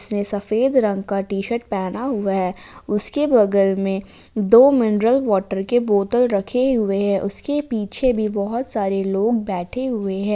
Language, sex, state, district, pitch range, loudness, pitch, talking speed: Hindi, female, Jharkhand, Palamu, 195-240 Hz, -19 LUFS, 210 Hz, 160 wpm